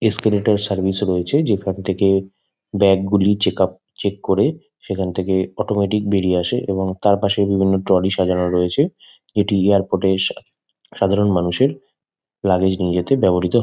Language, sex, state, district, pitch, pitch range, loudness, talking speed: Bengali, male, West Bengal, Kolkata, 95 Hz, 95-100 Hz, -18 LUFS, 145 wpm